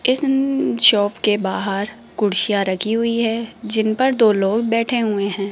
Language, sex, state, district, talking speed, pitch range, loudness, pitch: Hindi, female, Rajasthan, Jaipur, 175 wpm, 200-230 Hz, -18 LUFS, 220 Hz